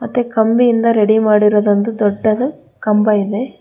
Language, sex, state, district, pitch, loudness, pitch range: Kannada, female, Karnataka, Bangalore, 220 Hz, -14 LUFS, 210-235 Hz